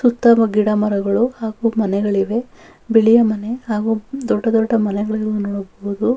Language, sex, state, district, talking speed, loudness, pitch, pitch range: Kannada, female, Karnataka, Bellary, 115 wpm, -17 LUFS, 220 Hz, 210-230 Hz